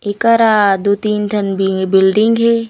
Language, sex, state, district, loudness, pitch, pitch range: Chhattisgarhi, female, Chhattisgarh, Raigarh, -13 LUFS, 210 Hz, 195-230 Hz